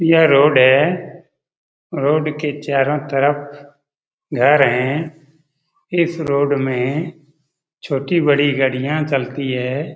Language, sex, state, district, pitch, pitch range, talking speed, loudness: Hindi, male, Jharkhand, Jamtara, 145 Hz, 140-160 Hz, 100 wpm, -17 LUFS